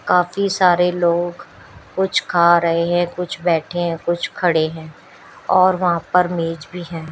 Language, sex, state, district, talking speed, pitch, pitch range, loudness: Hindi, female, Uttar Pradesh, Shamli, 160 wpm, 175 Hz, 165-180 Hz, -18 LUFS